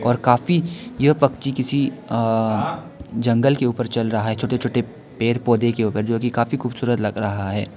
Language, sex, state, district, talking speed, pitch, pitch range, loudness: Hindi, male, Arunachal Pradesh, Lower Dibang Valley, 195 wpm, 120 Hz, 115-130 Hz, -21 LUFS